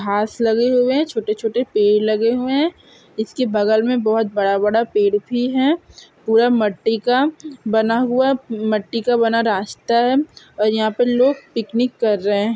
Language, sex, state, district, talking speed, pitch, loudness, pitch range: Hindi, female, Andhra Pradesh, Krishna, 185 wpm, 230 Hz, -18 LUFS, 215-250 Hz